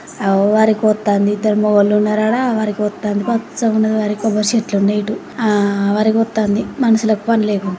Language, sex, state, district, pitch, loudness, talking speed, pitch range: Telugu, female, Telangana, Karimnagar, 215 Hz, -16 LUFS, 140 wpm, 205-220 Hz